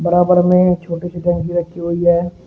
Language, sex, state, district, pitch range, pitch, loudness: Hindi, male, Uttar Pradesh, Shamli, 170-175 Hz, 175 Hz, -15 LUFS